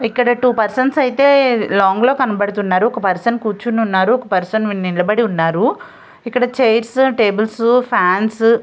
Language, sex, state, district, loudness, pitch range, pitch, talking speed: Telugu, female, Andhra Pradesh, Visakhapatnam, -15 LUFS, 205-245 Hz, 230 Hz, 140 wpm